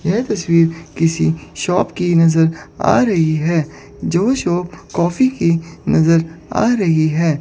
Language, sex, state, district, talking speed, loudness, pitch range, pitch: Hindi, female, Chandigarh, Chandigarh, 140 wpm, -16 LUFS, 160-180 Hz, 165 Hz